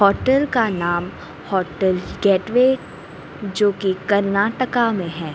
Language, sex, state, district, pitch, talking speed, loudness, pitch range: Hindi, female, Bihar, Katihar, 200 Hz, 100 wpm, -19 LUFS, 180-225 Hz